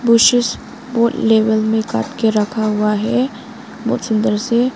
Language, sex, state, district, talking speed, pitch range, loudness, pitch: Hindi, female, Arunachal Pradesh, Lower Dibang Valley, 150 wpm, 220-240 Hz, -16 LUFS, 230 Hz